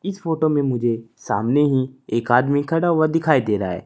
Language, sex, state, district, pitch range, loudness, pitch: Hindi, male, Uttar Pradesh, Saharanpur, 120-155 Hz, -20 LUFS, 135 Hz